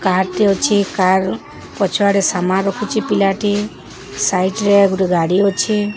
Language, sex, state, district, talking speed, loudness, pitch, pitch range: Odia, male, Odisha, Sambalpur, 130 wpm, -16 LUFS, 195 Hz, 185-205 Hz